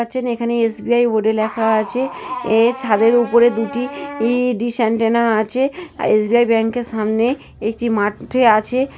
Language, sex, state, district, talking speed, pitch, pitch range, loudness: Bengali, female, West Bengal, North 24 Parganas, 140 wpm, 235 Hz, 220-250 Hz, -17 LUFS